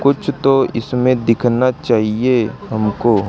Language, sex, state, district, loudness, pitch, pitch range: Hindi, male, Madhya Pradesh, Katni, -16 LUFS, 125 Hz, 115-130 Hz